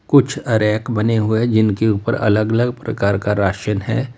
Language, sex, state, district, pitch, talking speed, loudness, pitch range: Hindi, male, Uttar Pradesh, Lalitpur, 110 Hz, 185 wpm, -17 LUFS, 105-120 Hz